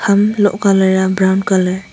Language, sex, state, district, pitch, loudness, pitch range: Wancho, female, Arunachal Pradesh, Longding, 190 Hz, -13 LUFS, 190-200 Hz